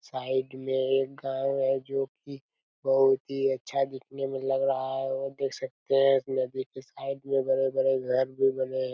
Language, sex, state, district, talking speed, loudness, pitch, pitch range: Hindi, male, Chhattisgarh, Raigarh, 190 wpm, -28 LUFS, 135 Hz, 130-135 Hz